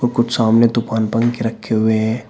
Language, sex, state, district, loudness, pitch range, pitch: Hindi, male, Uttar Pradesh, Shamli, -16 LUFS, 110-120 Hz, 115 Hz